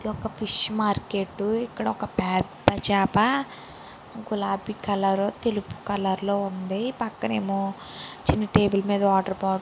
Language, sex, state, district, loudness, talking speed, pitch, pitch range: Telugu, female, Andhra Pradesh, Srikakulam, -25 LUFS, 135 wpm, 200 Hz, 195-215 Hz